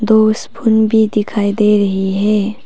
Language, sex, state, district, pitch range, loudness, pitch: Hindi, female, Arunachal Pradesh, Papum Pare, 205-220 Hz, -14 LUFS, 210 Hz